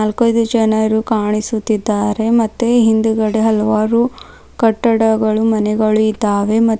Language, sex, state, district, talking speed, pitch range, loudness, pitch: Kannada, female, Karnataka, Bidar, 90 wpm, 215-225 Hz, -15 LUFS, 220 Hz